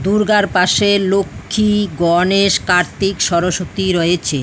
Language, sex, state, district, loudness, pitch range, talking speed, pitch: Bengali, female, West Bengal, Alipurduar, -15 LUFS, 175-200 Hz, 95 wpm, 190 Hz